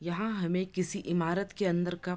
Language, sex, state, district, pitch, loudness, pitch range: Hindi, female, Bihar, East Champaran, 180 Hz, -32 LUFS, 175-195 Hz